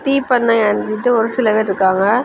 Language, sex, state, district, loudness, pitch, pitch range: Tamil, female, Tamil Nadu, Kanyakumari, -15 LUFS, 225 Hz, 210-245 Hz